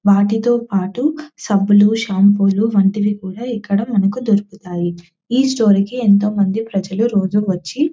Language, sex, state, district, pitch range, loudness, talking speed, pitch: Telugu, female, Telangana, Nalgonda, 195-230 Hz, -16 LUFS, 135 wpm, 205 Hz